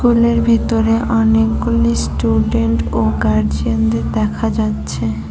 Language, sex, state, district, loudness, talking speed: Bengali, female, West Bengal, Cooch Behar, -16 LUFS, 90 wpm